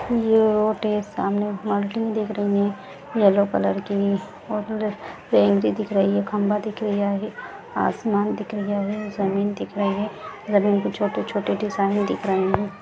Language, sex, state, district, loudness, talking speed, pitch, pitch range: Hindi, female, Bihar, Jamui, -23 LUFS, 165 wpm, 205 Hz, 200-215 Hz